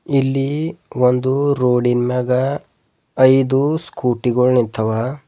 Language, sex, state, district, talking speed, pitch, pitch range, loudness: Kannada, male, Karnataka, Bidar, 100 wpm, 130 Hz, 125-140 Hz, -17 LUFS